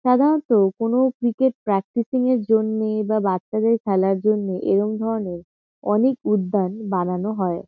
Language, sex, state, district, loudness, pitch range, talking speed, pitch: Bengali, female, West Bengal, Kolkata, -21 LUFS, 195-235 Hz, 125 wpm, 215 Hz